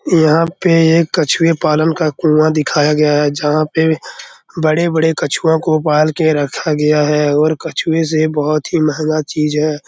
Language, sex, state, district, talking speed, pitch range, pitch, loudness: Hindi, male, Bihar, Araria, 170 wpm, 150-160 Hz, 155 Hz, -14 LUFS